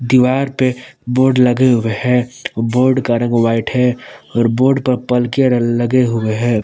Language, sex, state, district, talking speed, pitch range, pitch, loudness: Hindi, male, Jharkhand, Palamu, 165 wpm, 120-130 Hz, 125 Hz, -15 LUFS